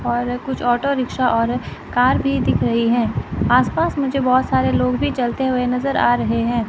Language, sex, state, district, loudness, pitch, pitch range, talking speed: Hindi, female, Chandigarh, Chandigarh, -18 LUFS, 245 Hz, 235-260 Hz, 195 wpm